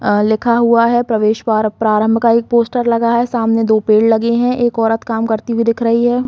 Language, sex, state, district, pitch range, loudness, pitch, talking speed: Hindi, female, Chhattisgarh, Bilaspur, 220-235 Hz, -14 LUFS, 230 Hz, 240 wpm